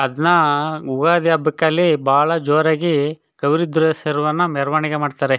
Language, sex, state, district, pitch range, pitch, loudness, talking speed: Kannada, male, Karnataka, Chamarajanagar, 145-160 Hz, 155 Hz, -17 LUFS, 100 wpm